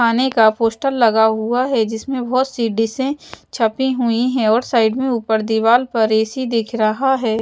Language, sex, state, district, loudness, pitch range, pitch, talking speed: Hindi, female, Chhattisgarh, Raipur, -17 LUFS, 220-260 Hz, 230 Hz, 185 wpm